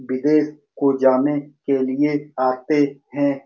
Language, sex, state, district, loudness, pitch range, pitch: Hindi, male, Bihar, Saran, -20 LUFS, 135-145 Hz, 140 Hz